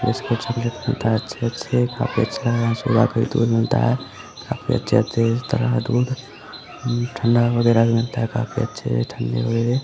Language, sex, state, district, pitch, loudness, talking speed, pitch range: Hindi, male, Bihar, Samastipur, 120 Hz, -21 LUFS, 210 wpm, 115-125 Hz